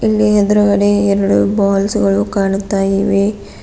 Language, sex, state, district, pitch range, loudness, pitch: Kannada, female, Karnataka, Bidar, 195-205 Hz, -14 LUFS, 200 Hz